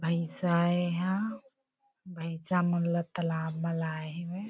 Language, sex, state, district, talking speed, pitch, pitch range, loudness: Hindi, female, Chhattisgarh, Bilaspur, 135 wpm, 175 Hz, 165-185 Hz, -31 LUFS